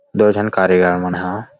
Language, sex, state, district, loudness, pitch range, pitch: Chhattisgarhi, male, Chhattisgarh, Rajnandgaon, -16 LUFS, 90-105 Hz, 95 Hz